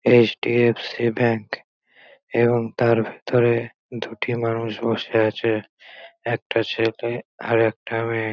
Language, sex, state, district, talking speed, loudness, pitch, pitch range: Bengali, male, West Bengal, North 24 Parganas, 100 wpm, -22 LUFS, 115 Hz, 115-120 Hz